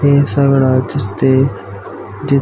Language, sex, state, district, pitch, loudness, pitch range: Marathi, male, Maharashtra, Aurangabad, 135 Hz, -13 LUFS, 115-140 Hz